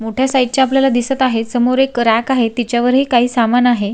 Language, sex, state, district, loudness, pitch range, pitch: Marathi, female, Maharashtra, Sindhudurg, -14 LUFS, 235-265 Hz, 245 Hz